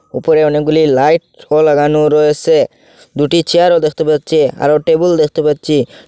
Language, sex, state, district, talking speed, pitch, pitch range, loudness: Bengali, male, Assam, Hailakandi, 140 wpm, 155 Hz, 150-160 Hz, -12 LUFS